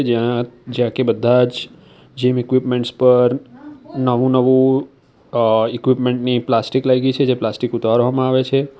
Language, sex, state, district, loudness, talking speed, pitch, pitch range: Gujarati, male, Gujarat, Valsad, -17 LUFS, 135 wpm, 125 Hz, 120-130 Hz